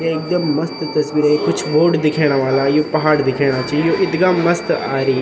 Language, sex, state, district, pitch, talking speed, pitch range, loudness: Garhwali, male, Uttarakhand, Tehri Garhwal, 150 Hz, 195 wpm, 140-160 Hz, -16 LUFS